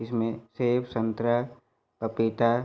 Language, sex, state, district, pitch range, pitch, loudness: Hindi, male, Uttar Pradesh, Varanasi, 115-120 Hz, 115 Hz, -28 LUFS